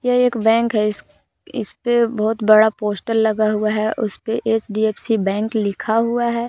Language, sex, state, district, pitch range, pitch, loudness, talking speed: Hindi, female, Jharkhand, Palamu, 215-230 Hz, 220 Hz, -18 LUFS, 155 wpm